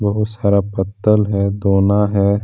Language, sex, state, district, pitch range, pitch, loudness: Hindi, male, Jharkhand, Deoghar, 100-105 Hz, 100 Hz, -16 LUFS